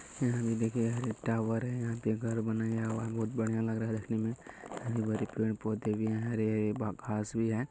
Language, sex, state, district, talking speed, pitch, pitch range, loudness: Hindi, male, Bihar, Begusarai, 235 wpm, 110 Hz, 110-115 Hz, -34 LUFS